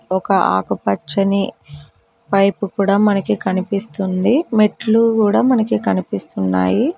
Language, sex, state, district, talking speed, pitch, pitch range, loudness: Telugu, female, Telangana, Mahabubabad, 85 wpm, 195 Hz, 135-210 Hz, -17 LUFS